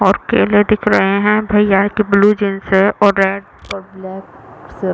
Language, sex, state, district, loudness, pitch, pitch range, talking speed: Hindi, female, Chhattisgarh, Raigarh, -13 LUFS, 200 Hz, 195-210 Hz, 180 wpm